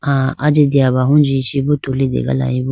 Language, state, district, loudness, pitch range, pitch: Idu Mishmi, Arunachal Pradesh, Lower Dibang Valley, -15 LUFS, 130-140 Hz, 135 Hz